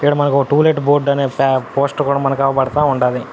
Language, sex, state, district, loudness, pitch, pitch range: Telugu, male, Andhra Pradesh, Anantapur, -15 LUFS, 140 Hz, 135-145 Hz